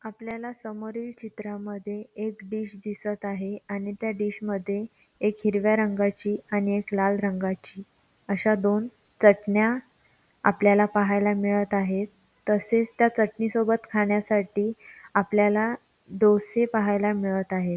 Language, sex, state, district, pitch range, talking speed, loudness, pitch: Marathi, female, Maharashtra, Pune, 200-220 Hz, 120 wpm, -25 LUFS, 205 Hz